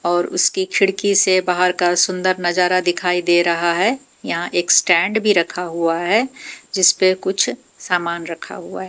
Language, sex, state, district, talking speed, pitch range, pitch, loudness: Hindi, female, Haryana, Jhajjar, 175 wpm, 175-190 Hz, 180 Hz, -17 LUFS